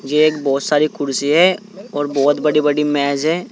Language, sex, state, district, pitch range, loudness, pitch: Hindi, male, Uttar Pradesh, Saharanpur, 145-155 Hz, -16 LUFS, 150 Hz